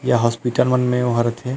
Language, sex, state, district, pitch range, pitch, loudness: Chhattisgarhi, male, Chhattisgarh, Rajnandgaon, 120-125 Hz, 120 Hz, -19 LUFS